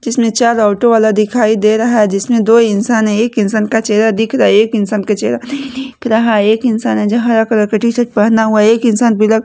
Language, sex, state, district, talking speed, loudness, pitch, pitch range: Hindi, female, Chhattisgarh, Raipur, 275 wpm, -12 LUFS, 225 Hz, 215-235 Hz